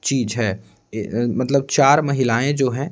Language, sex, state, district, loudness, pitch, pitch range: Hindi, male, Bihar, Patna, -19 LUFS, 130 Hz, 115-140 Hz